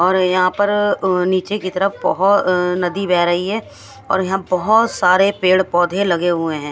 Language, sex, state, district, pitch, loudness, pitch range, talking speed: Hindi, female, Bihar, West Champaran, 185 Hz, -16 LUFS, 180-195 Hz, 170 wpm